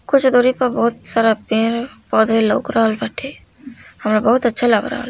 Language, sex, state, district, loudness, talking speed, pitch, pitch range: Hindi, female, Bihar, East Champaran, -17 LUFS, 190 wpm, 235 Hz, 225-255 Hz